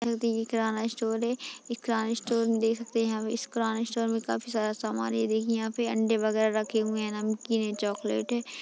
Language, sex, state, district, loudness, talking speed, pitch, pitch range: Hindi, female, Chhattisgarh, Rajnandgaon, -29 LUFS, 235 wpm, 225 Hz, 220-230 Hz